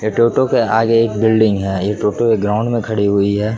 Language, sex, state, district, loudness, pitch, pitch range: Hindi, male, Jharkhand, Jamtara, -15 LUFS, 110 Hz, 105-115 Hz